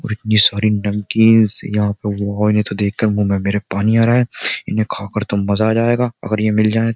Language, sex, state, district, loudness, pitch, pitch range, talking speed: Hindi, male, Uttar Pradesh, Jyotiba Phule Nagar, -16 LUFS, 105 Hz, 100-110 Hz, 240 wpm